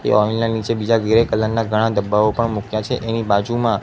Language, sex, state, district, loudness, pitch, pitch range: Gujarati, male, Gujarat, Gandhinagar, -18 LUFS, 110 Hz, 105-115 Hz